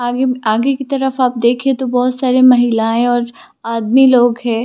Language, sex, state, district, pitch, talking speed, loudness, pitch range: Hindi, female, Jharkhand, Sahebganj, 245 Hz, 180 wpm, -13 LUFS, 235-260 Hz